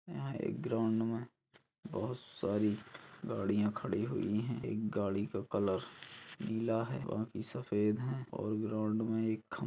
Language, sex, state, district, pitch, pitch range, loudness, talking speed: Hindi, male, Chhattisgarh, Kabirdham, 110 Hz, 105-115 Hz, -37 LUFS, 150 wpm